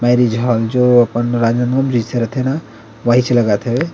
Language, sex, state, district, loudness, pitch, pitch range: Chhattisgarhi, male, Chhattisgarh, Rajnandgaon, -15 LUFS, 120 Hz, 115-125 Hz